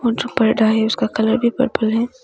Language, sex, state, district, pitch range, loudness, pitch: Hindi, female, Arunachal Pradesh, Longding, 220-240 Hz, -17 LUFS, 230 Hz